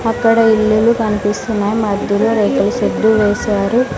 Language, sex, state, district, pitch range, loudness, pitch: Telugu, female, Andhra Pradesh, Sri Satya Sai, 210-225 Hz, -14 LUFS, 215 Hz